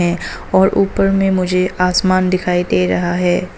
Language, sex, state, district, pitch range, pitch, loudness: Hindi, female, Arunachal Pradesh, Papum Pare, 175-190 Hz, 180 Hz, -15 LUFS